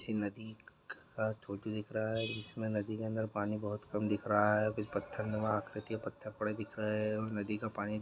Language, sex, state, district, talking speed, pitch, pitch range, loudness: Hindi, male, Bihar, East Champaran, 225 wpm, 110 Hz, 105-110 Hz, -37 LUFS